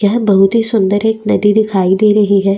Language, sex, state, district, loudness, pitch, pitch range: Hindi, female, Chhattisgarh, Bastar, -12 LUFS, 205 Hz, 195-215 Hz